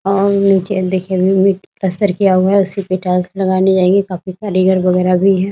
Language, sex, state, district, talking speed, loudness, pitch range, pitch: Hindi, female, Bihar, Muzaffarpur, 215 wpm, -14 LUFS, 185-195 Hz, 190 Hz